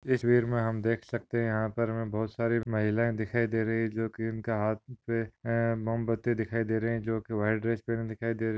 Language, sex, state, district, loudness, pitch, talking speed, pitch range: Hindi, male, Maharashtra, Nagpur, -30 LUFS, 115 Hz, 245 wpm, 110-115 Hz